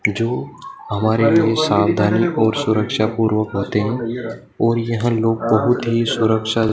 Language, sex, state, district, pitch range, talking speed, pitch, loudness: Hindi, male, Madhya Pradesh, Dhar, 110-115 Hz, 135 wpm, 115 Hz, -18 LUFS